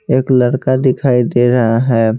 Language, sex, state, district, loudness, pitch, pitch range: Hindi, male, Bihar, Patna, -13 LUFS, 125 Hz, 120-130 Hz